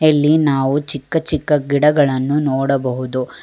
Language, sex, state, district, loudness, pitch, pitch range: Kannada, female, Karnataka, Bangalore, -16 LUFS, 145 Hz, 135-150 Hz